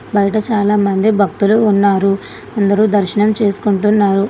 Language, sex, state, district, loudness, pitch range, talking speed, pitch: Telugu, female, Telangana, Hyderabad, -14 LUFS, 200-210 Hz, 110 wpm, 205 Hz